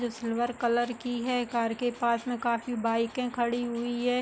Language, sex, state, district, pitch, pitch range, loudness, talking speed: Hindi, female, Uttar Pradesh, Hamirpur, 240 Hz, 235-245 Hz, -29 LUFS, 200 wpm